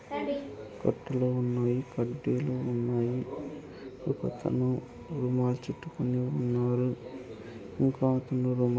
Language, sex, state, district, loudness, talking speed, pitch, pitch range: Telugu, male, Andhra Pradesh, Anantapur, -31 LUFS, 75 wpm, 125 Hz, 120-130 Hz